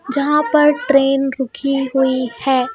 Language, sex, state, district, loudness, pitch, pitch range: Hindi, female, Madhya Pradesh, Bhopal, -16 LUFS, 275 Hz, 265-290 Hz